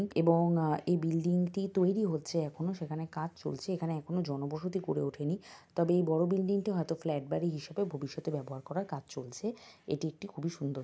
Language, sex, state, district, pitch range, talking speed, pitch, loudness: Bengali, female, West Bengal, North 24 Parganas, 155-180 Hz, 195 wpm, 165 Hz, -34 LUFS